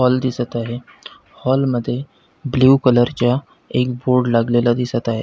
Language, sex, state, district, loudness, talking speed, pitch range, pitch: Marathi, male, Maharashtra, Pune, -18 LUFS, 150 wpm, 120-130 Hz, 125 Hz